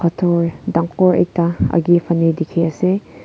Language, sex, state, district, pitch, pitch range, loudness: Nagamese, female, Nagaland, Kohima, 170 Hz, 165-175 Hz, -17 LUFS